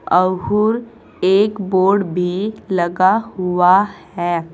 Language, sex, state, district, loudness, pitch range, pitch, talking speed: Hindi, female, Uttar Pradesh, Saharanpur, -17 LUFS, 180-210 Hz, 185 Hz, 80 wpm